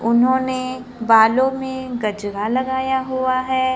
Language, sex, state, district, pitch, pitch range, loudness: Hindi, female, Maharashtra, Gondia, 255 Hz, 230-260 Hz, -19 LUFS